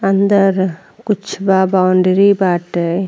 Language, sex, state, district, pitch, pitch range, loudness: Bhojpuri, female, Uttar Pradesh, Ghazipur, 190 Hz, 185-195 Hz, -14 LUFS